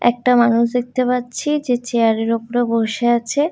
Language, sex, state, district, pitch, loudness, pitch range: Bengali, female, Odisha, Khordha, 240 Hz, -18 LUFS, 230-250 Hz